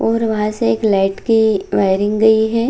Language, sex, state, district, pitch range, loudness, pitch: Hindi, female, Bihar, Bhagalpur, 205-225 Hz, -15 LUFS, 220 Hz